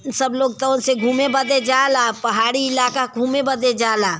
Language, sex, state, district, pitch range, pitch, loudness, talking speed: Bhojpuri, female, Uttar Pradesh, Varanasi, 240-265 Hz, 260 Hz, -18 LUFS, 155 wpm